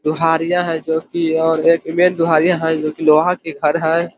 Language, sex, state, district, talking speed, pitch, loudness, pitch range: Hindi, male, Chhattisgarh, Korba, 185 wpm, 160 Hz, -16 LUFS, 160-170 Hz